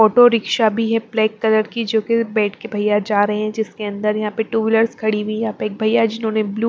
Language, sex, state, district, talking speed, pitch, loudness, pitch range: Hindi, female, Maharashtra, Mumbai Suburban, 250 wpm, 220 Hz, -18 LUFS, 215-225 Hz